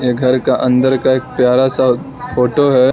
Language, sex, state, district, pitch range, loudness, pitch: Hindi, male, Arunachal Pradesh, Lower Dibang Valley, 125-130 Hz, -14 LUFS, 130 Hz